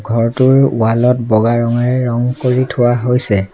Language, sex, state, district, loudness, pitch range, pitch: Assamese, male, Assam, Sonitpur, -13 LUFS, 115-125 Hz, 120 Hz